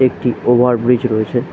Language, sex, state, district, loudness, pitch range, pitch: Bengali, male, West Bengal, Dakshin Dinajpur, -14 LUFS, 120-125 Hz, 120 Hz